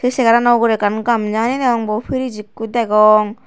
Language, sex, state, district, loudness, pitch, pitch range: Chakma, female, Tripura, Dhalai, -15 LUFS, 230 Hz, 215-240 Hz